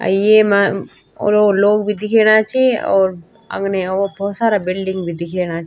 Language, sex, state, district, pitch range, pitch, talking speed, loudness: Garhwali, female, Uttarakhand, Tehri Garhwal, 190-210 Hz, 200 Hz, 170 wpm, -15 LUFS